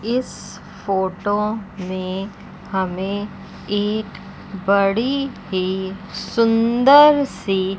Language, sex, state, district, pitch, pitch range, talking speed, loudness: Hindi, female, Chandigarh, Chandigarh, 200 Hz, 190-220 Hz, 70 wpm, -19 LUFS